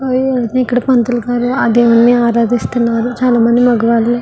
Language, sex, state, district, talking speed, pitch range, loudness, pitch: Telugu, female, Andhra Pradesh, Visakhapatnam, 115 wpm, 235-245 Hz, -12 LUFS, 240 Hz